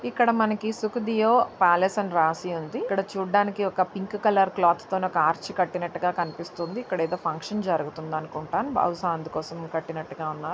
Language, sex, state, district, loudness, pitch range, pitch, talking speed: Telugu, female, Andhra Pradesh, Anantapur, -26 LUFS, 165-205 Hz, 180 Hz, 155 wpm